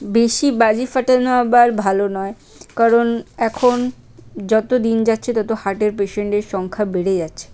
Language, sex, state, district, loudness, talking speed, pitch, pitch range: Bengali, female, West Bengal, Kolkata, -17 LUFS, 145 wpm, 220 Hz, 200-240 Hz